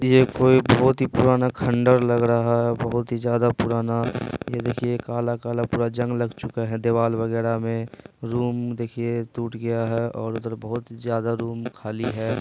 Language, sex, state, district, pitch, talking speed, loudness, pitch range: Hindi, male, Bihar, Purnia, 120 Hz, 180 wpm, -23 LUFS, 115-120 Hz